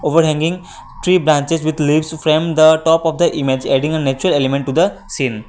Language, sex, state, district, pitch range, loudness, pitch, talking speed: English, male, Assam, Kamrup Metropolitan, 140-165 Hz, -15 LUFS, 155 Hz, 205 wpm